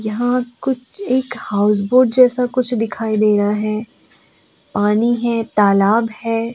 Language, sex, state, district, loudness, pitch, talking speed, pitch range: Hindi, female, Goa, North and South Goa, -17 LUFS, 230 Hz, 130 wpm, 210-245 Hz